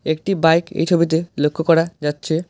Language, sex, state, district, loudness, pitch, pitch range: Bengali, male, West Bengal, Alipurduar, -18 LUFS, 165 Hz, 160-170 Hz